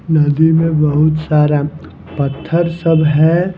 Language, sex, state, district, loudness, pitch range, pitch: Hindi, male, Himachal Pradesh, Shimla, -14 LUFS, 150-165 Hz, 155 Hz